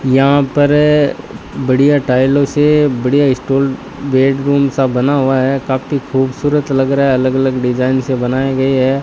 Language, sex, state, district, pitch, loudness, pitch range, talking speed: Hindi, male, Rajasthan, Bikaner, 135 Hz, -13 LUFS, 130-140 Hz, 160 wpm